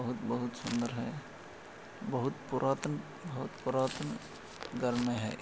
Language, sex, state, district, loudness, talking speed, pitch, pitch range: Hindi, male, Maharashtra, Aurangabad, -36 LUFS, 145 wpm, 120 Hz, 120-130 Hz